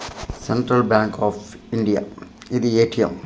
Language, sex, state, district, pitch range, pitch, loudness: Telugu, male, Andhra Pradesh, Manyam, 105-120 Hz, 110 Hz, -20 LUFS